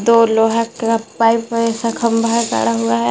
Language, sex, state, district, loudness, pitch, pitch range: Hindi, female, Jharkhand, Garhwa, -16 LUFS, 230 Hz, 225-230 Hz